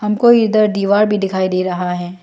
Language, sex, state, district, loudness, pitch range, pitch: Hindi, female, Arunachal Pradesh, Lower Dibang Valley, -15 LUFS, 185-210 Hz, 200 Hz